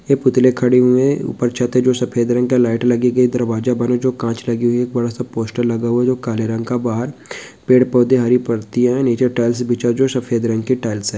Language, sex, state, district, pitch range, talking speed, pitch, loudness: Hindi, male, Bihar, Jamui, 120-125 Hz, 285 wpm, 125 Hz, -16 LUFS